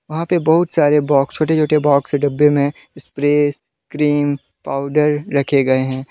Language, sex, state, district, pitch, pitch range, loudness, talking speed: Hindi, male, Jharkhand, Deoghar, 145 Hz, 140-150 Hz, -16 LUFS, 165 wpm